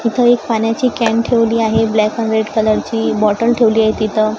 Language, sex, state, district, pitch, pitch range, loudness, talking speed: Marathi, female, Maharashtra, Gondia, 225 Hz, 220-230 Hz, -14 LUFS, 190 wpm